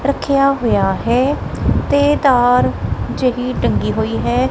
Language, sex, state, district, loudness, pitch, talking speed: Punjabi, male, Punjab, Kapurthala, -16 LUFS, 250 Hz, 120 wpm